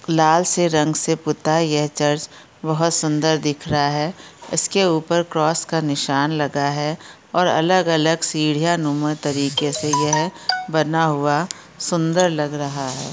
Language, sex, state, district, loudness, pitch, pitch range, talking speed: Hindi, female, Bihar, Darbhanga, -19 LUFS, 155 Hz, 150-165 Hz, 145 wpm